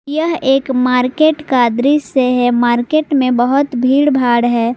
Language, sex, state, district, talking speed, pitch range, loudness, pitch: Hindi, female, Jharkhand, Garhwa, 150 wpm, 245-285 Hz, -13 LUFS, 255 Hz